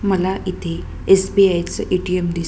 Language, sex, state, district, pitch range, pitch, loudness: Marathi, female, Maharashtra, Chandrapur, 170-190 Hz, 185 Hz, -18 LUFS